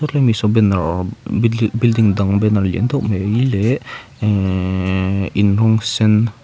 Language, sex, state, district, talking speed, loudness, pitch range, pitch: Mizo, male, Mizoram, Aizawl, 130 wpm, -16 LUFS, 100-115 Hz, 105 Hz